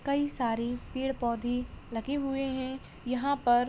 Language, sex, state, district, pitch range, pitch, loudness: Hindi, female, Jharkhand, Sahebganj, 240-270 Hz, 260 Hz, -32 LUFS